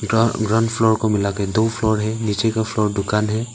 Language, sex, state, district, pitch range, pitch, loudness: Hindi, male, Arunachal Pradesh, Papum Pare, 105-115 Hz, 110 Hz, -19 LUFS